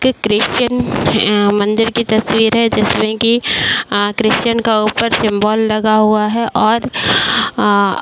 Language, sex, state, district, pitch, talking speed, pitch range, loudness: Hindi, female, Uttar Pradesh, Varanasi, 220 Hz, 140 wpm, 210-230 Hz, -13 LUFS